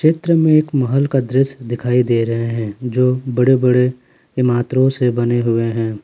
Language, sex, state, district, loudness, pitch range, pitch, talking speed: Hindi, male, Jharkhand, Ranchi, -16 LUFS, 120-135 Hz, 125 Hz, 180 wpm